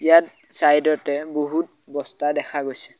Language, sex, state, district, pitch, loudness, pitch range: Assamese, male, Assam, Sonitpur, 150 Hz, -20 LUFS, 145-155 Hz